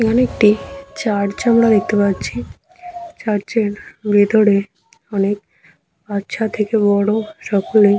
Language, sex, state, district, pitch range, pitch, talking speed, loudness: Bengali, female, West Bengal, Malda, 200-225 Hz, 210 Hz, 105 wpm, -17 LUFS